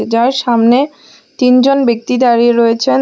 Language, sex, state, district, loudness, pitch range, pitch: Bengali, female, Assam, Hailakandi, -11 LUFS, 235-265 Hz, 245 Hz